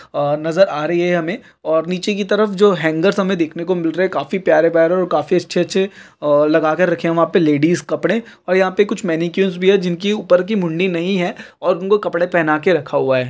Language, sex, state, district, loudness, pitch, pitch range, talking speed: Hindi, male, Uttarakhand, Tehri Garhwal, -16 LUFS, 175 Hz, 165-195 Hz, 240 wpm